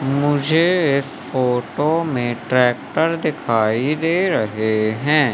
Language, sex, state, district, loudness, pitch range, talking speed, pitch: Hindi, male, Madhya Pradesh, Umaria, -18 LUFS, 120-155 Hz, 100 wpm, 140 Hz